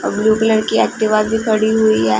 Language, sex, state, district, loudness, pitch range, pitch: Hindi, female, Punjab, Fazilka, -15 LUFS, 215-220 Hz, 220 Hz